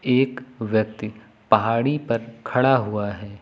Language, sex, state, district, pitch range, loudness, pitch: Hindi, male, Uttar Pradesh, Lucknow, 105-130 Hz, -22 LUFS, 115 Hz